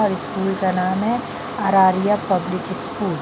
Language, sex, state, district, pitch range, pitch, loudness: Hindi, female, Bihar, Araria, 185-205 Hz, 190 Hz, -20 LUFS